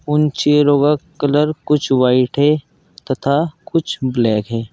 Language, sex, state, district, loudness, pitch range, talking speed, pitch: Hindi, male, Uttar Pradesh, Saharanpur, -16 LUFS, 130-150 Hz, 140 wpm, 145 Hz